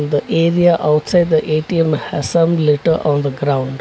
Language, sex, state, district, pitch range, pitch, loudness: English, male, Karnataka, Bangalore, 145-165 Hz, 155 Hz, -15 LUFS